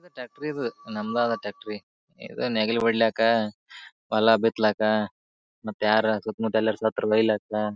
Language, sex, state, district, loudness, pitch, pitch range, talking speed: Kannada, male, Karnataka, Bijapur, -25 LUFS, 110 Hz, 105-115 Hz, 140 wpm